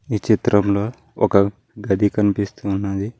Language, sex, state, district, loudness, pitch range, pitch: Telugu, male, Telangana, Mahabubabad, -19 LUFS, 100-110 Hz, 100 Hz